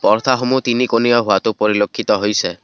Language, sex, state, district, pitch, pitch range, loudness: Assamese, male, Assam, Kamrup Metropolitan, 110 Hz, 105-125 Hz, -16 LUFS